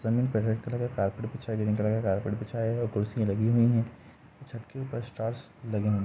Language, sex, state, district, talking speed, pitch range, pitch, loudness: Hindi, male, Uttar Pradesh, Jalaun, 210 wpm, 110-120 Hz, 115 Hz, -29 LUFS